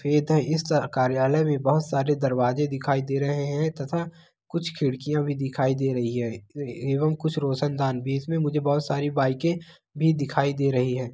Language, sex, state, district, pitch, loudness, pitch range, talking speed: Hindi, male, Bihar, Begusarai, 145 Hz, -25 LUFS, 135-155 Hz, 175 wpm